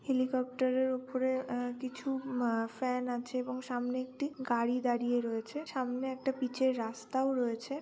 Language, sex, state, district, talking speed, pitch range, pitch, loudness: Bengali, female, West Bengal, Malda, 155 wpm, 245-260 Hz, 255 Hz, -34 LUFS